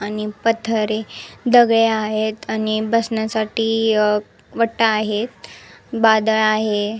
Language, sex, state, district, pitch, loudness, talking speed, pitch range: Marathi, female, Maharashtra, Nagpur, 220 Hz, -18 LUFS, 95 wpm, 215-225 Hz